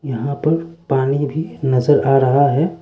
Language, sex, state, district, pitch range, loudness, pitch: Hindi, male, Arunachal Pradesh, Lower Dibang Valley, 135-160 Hz, -17 LUFS, 145 Hz